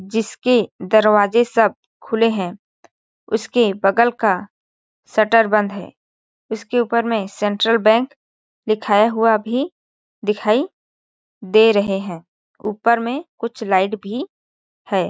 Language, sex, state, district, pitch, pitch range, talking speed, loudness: Hindi, female, Chhattisgarh, Balrampur, 220 Hz, 205-235 Hz, 115 wpm, -18 LUFS